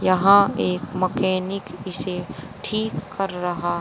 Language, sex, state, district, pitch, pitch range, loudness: Hindi, female, Haryana, Rohtak, 185 Hz, 175-195 Hz, -22 LUFS